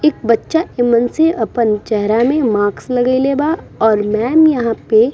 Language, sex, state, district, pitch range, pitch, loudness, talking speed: Bhojpuri, female, Bihar, East Champaran, 220-290 Hz, 240 Hz, -14 LUFS, 175 wpm